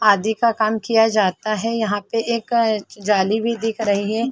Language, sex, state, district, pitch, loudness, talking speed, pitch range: Hindi, female, Uttar Pradesh, Jalaun, 220 Hz, -19 LUFS, 195 wpm, 210-230 Hz